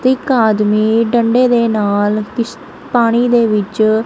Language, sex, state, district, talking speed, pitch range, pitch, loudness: Punjabi, male, Punjab, Kapurthala, 150 wpm, 215-240 Hz, 230 Hz, -13 LUFS